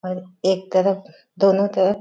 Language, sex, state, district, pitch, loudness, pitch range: Chhattisgarhi, female, Chhattisgarh, Jashpur, 190 Hz, -20 LUFS, 185-195 Hz